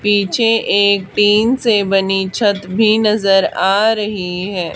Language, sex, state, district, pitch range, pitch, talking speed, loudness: Hindi, female, Haryana, Charkhi Dadri, 195-215 Hz, 205 Hz, 140 wpm, -14 LUFS